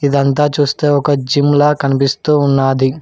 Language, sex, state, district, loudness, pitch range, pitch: Telugu, male, Telangana, Hyderabad, -13 LUFS, 135-145 Hz, 145 Hz